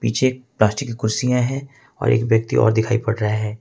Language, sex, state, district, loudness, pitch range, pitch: Hindi, male, Jharkhand, Ranchi, -20 LUFS, 110-130 Hz, 115 Hz